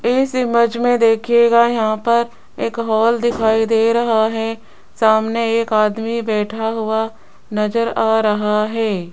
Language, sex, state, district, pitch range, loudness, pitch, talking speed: Hindi, female, Rajasthan, Jaipur, 220-235 Hz, -17 LUFS, 225 Hz, 140 wpm